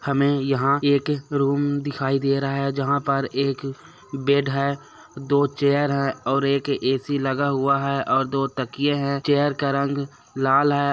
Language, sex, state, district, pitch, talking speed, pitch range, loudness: Hindi, male, Chhattisgarh, Raigarh, 140 Hz, 170 wpm, 135-140 Hz, -22 LUFS